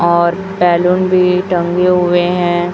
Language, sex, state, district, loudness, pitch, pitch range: Hindi, female, Chhattisgarh, Raipur, -13 LUFS, 180 Hz, 175-180 Hz